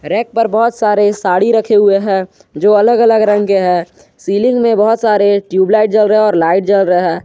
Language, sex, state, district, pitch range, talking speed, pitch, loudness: Hindi, male, Jharkhand, Garhwa, 190-220 Hz, 215 wpm, 205 Hz, -11 LUFS